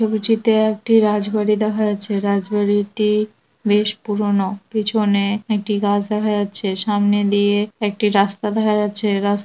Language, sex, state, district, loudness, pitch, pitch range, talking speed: Bengali, female, West Bengal, Dakshin Dinajpur, -18 LUFS, 210 Hz, 205-215 Hz, 140 wpm